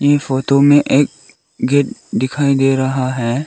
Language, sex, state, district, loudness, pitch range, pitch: Hindi, male, Arunachal Pradesh, Lower Dibang Valley, -15 LUFS, 130-140 Hz, 135 Hz